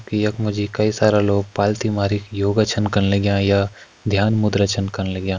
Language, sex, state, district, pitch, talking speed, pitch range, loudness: Hindi, male, Uttarakhand, Tehri Garhwal, 100 Hz, 200 wpm, 100-105 Hz, -19 LUFS